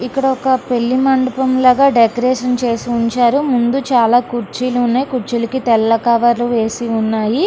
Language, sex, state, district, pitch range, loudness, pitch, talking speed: Telugu, female, Andhra Pradesh, Srikakulam, 235-255 Hz, -14 LUFS, 245 Hz, 135 wpm